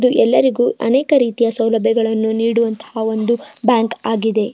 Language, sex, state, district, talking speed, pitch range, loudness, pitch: Kannada, female, Karnataka, Bijapur, 120 wpm, 220-245 Hz, -16 LUFS, 230 Hz